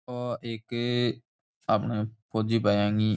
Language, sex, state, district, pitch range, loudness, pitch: Rajasthani, male, Rajasthan, Churu, 110-120 Hz, -28 LUFS, 115 Hz